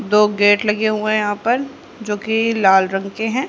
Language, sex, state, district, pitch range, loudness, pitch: Hindi, female, Haryana, Charkhi Dadri, 205-225 Hz, -17 LUFS, 215 Hz